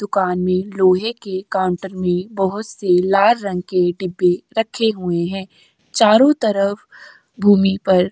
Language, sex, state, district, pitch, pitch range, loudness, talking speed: Hindi, female, Uttar Pradesh, Jyotiba Phule Nagar, 190 Hz, 185-205 Hz, -17 LUFS, 150 wpm